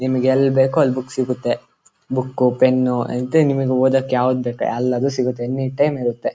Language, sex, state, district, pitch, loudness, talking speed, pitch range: Kannada, male, Karnataka, Shimoga, 130 Hz, -18 LUFS, 160 wpm, 125-135 Hz